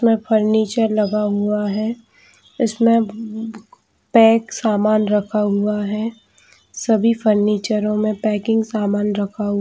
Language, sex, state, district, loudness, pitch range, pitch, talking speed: Hindi, female, Jharkhand, Jamtara, -18 LUFS, 210-225 Hz, 215 Hz, 110 wpm